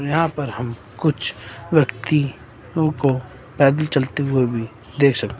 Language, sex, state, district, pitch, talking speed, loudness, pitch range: Hindi, female, Himachal Pradesh, Shimla, 135 Hz, 145 wpm, -20 LUFS, 120-150 Hz